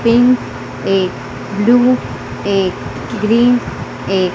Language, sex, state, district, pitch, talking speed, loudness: Hindi, female, Madhya Pradesh, Dhar, 195 Hz, 85 wpm, -15 LUFS